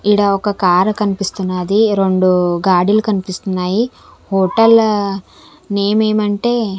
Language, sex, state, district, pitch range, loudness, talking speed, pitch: Telugu, female, Andhra Pradesh, Sri Satya Sai, 185-215 Hz, -15 LUFS, 115 wpm, 200 Hz